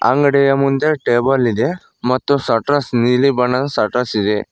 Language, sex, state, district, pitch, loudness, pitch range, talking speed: Kannada, male, Karnataka, Koppal, 130 Hz, -16 LUFS, 120-140 Hz, 135 wpm